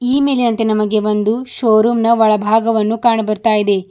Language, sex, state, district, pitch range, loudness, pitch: Kannada, female, Karnataka, Bidar, 215-235 Hz, -14 LUFS, 220 Hz